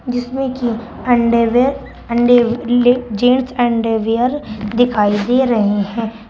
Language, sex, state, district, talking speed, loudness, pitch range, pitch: Hindi, female, Uttar Pradesh, Shamli, 95 wpm, -15 LUFS, 225-245 Hz, 240 Hz